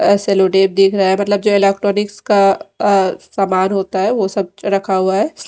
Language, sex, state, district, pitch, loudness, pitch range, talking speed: Hindi, female, Odisha, Malkangiri, 195 Hz, -15 LUFS, 190-200 Hz, 195 wpm